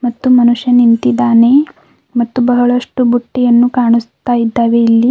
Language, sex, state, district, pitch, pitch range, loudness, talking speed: Kannada, female, Karnataka, Bidar, 240 Hz, 235-245 Hz, -11 LUFS, 105 wpm